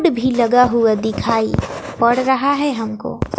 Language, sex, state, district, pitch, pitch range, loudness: Hindi, female, Bihar, West Champaran, 245 Hz, 225-265 Hz, -17 LUFS